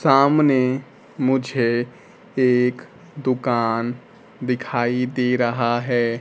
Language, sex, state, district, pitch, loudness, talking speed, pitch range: Hindi, male, Bihar, Kaimur, 125 Hz, -21 LUFS, 75 wpm, 120-130 Hz